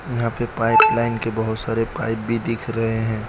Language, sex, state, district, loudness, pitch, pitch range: Hindi, male, Gujarat, Valsad, -21 LUFS, 115 Hz, 110-115 Hz